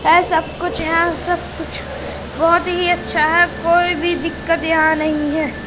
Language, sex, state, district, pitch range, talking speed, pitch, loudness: Hindi, female, Madhya Pradesh, Katni, 315-345 Hz, 170 wpm, 335 Hz, -17 LUFS